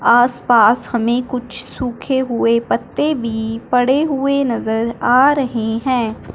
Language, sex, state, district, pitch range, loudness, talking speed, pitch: Hindi, male, Punjab, Fazilka, 230-260 Hz, -16 LUFS, 130 wpm, 245 Hz